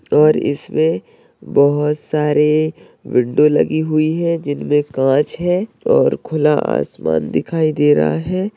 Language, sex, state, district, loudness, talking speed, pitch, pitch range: Hindi, male, Bihar, Madhepura, -16 LUFS, 125 wpm, 150 Hz, 145-160 Hz